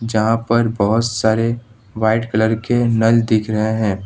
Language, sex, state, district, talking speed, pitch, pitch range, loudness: Hindi, male, Jharkhand, Ranchi, 160 wpm, 110 Hz, 110-115 Hz, -17 LUFS